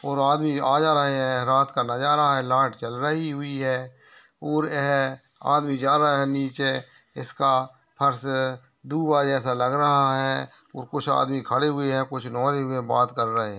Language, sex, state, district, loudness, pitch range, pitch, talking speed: Hindi, male, Uttar Pradesh, Hamirpur, -23 LUFS, 130-145 Hz, 135 Hz, 180 wpm